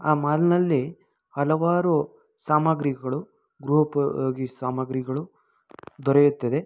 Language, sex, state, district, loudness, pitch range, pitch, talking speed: Kannada, male, Karnataka, Mysore, -24 LUFS, 135-160 Hz, 145 Hz, 70 wpm